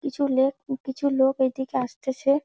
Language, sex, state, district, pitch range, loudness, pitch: Bengali, female, West Bengal, Jalpaiguri, 265-280 Hz, -25 LUFS, 265 Hz